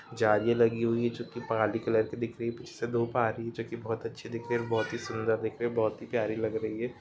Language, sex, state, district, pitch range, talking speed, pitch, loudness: Hindi, male, Rajasthan, Nagaur, 110-120 Hz, 280 wpm, 115 Hz, -31 LUFS